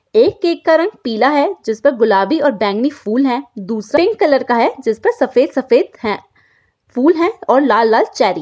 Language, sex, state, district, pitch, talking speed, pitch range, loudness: Hindi, female, Bihar, Saran, 270 Hz, 205 wpm, 230-330 Hz, -14 LUFS